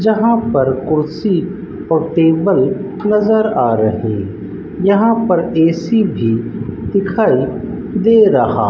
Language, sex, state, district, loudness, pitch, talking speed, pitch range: Hindi, male, Rajasthan, Bikaner, -14 LUFS, 185 Hz, 110 wpm, 155-215 Hz